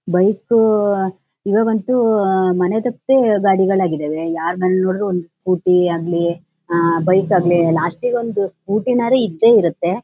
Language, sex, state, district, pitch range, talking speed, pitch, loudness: Kannada, female, Karnataka, Shimoga, 175-215 Hz, 115 wpm, 190 Hz, -16 LUFS